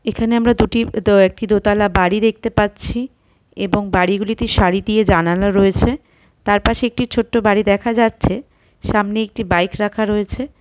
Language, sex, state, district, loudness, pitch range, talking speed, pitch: Bengali, female, West Bengal, Purulia, -16 LUFS, 205-230 Hz, 170 wpm, 210 Hz